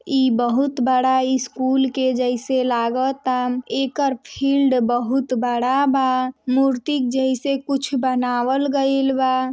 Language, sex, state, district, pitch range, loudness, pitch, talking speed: Hindi, female, Uttar Pradesh, Deoria, 250-270 Hz, -20 LUFS, 260 Hz, 125 wpm